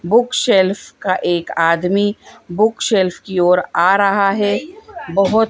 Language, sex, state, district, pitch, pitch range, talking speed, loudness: Hindi, female, Madhya Pradesh, Bhopal, 195 Hz, 180-215 Hz, 140 wpm, -16 LUFS